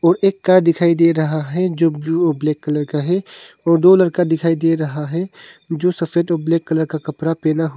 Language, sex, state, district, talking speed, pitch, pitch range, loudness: Hindi, male, Arunachal Pradesh, Longding, 230 wpm, 165 Hz, 155-175 Hz, -17 LUFS